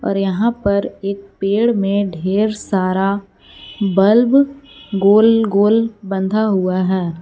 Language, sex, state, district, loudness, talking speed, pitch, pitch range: Hindi, female, Jharkhand, Palamu, -16 LUFS, 115 wpm, 200 Hz, 195-220 Hz